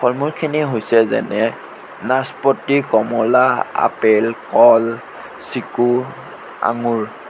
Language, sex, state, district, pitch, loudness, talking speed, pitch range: Assamese, male, Assam, Sonitpur, 120 Hz, -16 LUFS, 80 wpm, 115-135 Hz